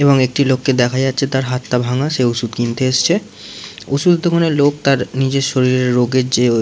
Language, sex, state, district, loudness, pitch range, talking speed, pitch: Bengali, male, West Bengal, Jalpaiguri, -15 LUFS, 125-140 Hz, 220 wpm, 130 Hz